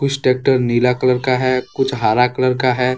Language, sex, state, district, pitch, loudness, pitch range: Hindi, male, Jharkhand, Deoghar, 130 Hz, -16 LUFS, 125-130 Hz